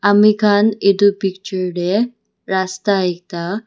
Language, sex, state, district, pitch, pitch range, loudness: Nagamese, female, Nagaland, Dimapur, 200 Hz, 185-205 Hz, -17 LUFS